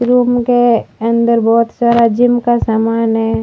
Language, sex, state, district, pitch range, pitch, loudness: Hindi, female, Rajasthan, Barmer, 230-240 Hz, 235 Hz, -12 LUFS